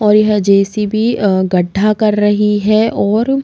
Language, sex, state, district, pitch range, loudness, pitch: Hindi, female, Uttar Pradesh, Jalaun, 200-215 Hz, -13 LUFS, 210 Hz